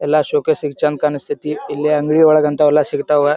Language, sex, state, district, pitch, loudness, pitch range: Kannada, male, Karnataka, Dharwad, 150 Hz, -16 LUFS, 150-155 Hz